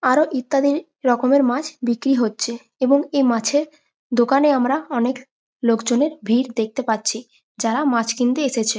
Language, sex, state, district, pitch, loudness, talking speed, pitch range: Bengali, female, West Bengal, Jalpaiguri, 255 Hz, -20 LUFS, 135 wpm, 235-280 Hz